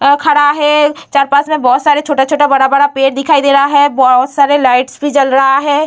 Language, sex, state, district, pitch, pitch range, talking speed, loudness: Hindi, female, Bihar, Vaishali, 280 Hz, 270-290 Hz, 225 wpm, -10 LUFS